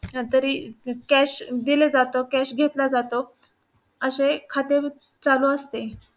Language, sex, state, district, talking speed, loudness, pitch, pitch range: Marathi, female, Maharashtra, Pune, 105 wpm, -23 LUFS, 265 Hz, 250-280 Hz